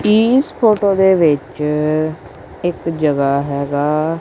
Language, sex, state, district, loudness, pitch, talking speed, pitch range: Punjabi, male, Punjab, Kapurthala, -16 LUFS, 155 Hz, 100 wpm, 145-190 Hz